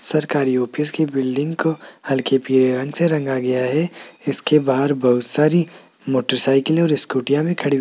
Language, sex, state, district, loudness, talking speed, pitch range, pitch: Hindi, male, Rajasthan, Jaipur, -19 LUFS, 175 wpm, 130-155 Hz, 140 Hz